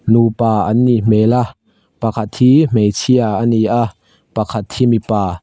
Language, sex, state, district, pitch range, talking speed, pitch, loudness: Mizo, male, Mizoram, Aizawl, 110-120 Hz, 155 wpm, 115 Hz, -14 LUFS